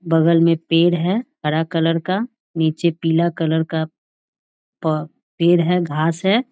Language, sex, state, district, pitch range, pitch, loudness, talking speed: Hindi, female, Bihar, Jahanabad, 160-175 Hz, 165 Hz, -19 LUFS, 145 wpm